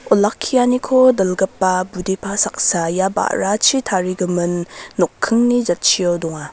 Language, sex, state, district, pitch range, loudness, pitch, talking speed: Garo, female, Meghalaya, West Garo Hills, 180-230 Hz, -17 LUFS, 190 Hz, 90 wpm